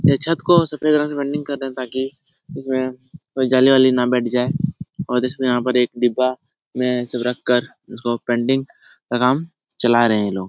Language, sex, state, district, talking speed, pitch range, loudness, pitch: Hindi, male, Bihar, Jahanabad, 205 wpm, 125-145 Hz, -19 LUFS, 130 Hz